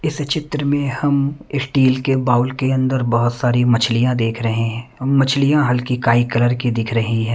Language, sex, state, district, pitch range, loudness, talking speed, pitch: Hindi, male, Himachal Pradesh, Shimla, 120-140 Hz, -17 LUFS, 190 wpm, 125 Hz